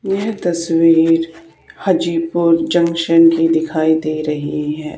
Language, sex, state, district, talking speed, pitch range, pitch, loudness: Hindi, female, Haryana, Charkhi Dadri, 110 wpm, 160-170 Hz, 165 Hz, -15 LUFS